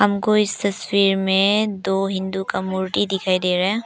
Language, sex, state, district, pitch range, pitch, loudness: Hindi, female, Arunachal Pradesh, Papum Pare, 190-205 Hz, 195 Hz, -20 LUFS